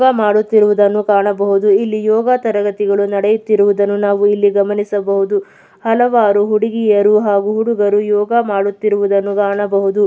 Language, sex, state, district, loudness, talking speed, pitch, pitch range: Kannada, female, Karnataka, Belgaum, -14 LUFS, 100 wpm, 205 Hz, 200-215 Hz